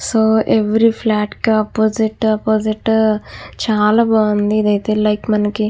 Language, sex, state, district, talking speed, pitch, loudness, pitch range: Telugu, female, Andhra Pradesh, Krishna, 125 wpm, 215 Hz, -15 LUFS, 210-220 Hz